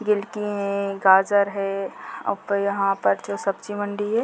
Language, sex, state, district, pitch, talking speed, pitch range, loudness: Hindi, female, Uttar Pradesh, Deoria, 200 Hz, 155 wpm, 195-205 Hz, -23 LUFS